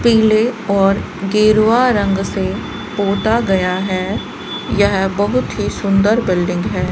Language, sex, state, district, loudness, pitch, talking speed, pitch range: Hindi, female, Rajasthan, Bikaner, -16 LUFS, 200 Hz, 120 wpm, 190-215 Hz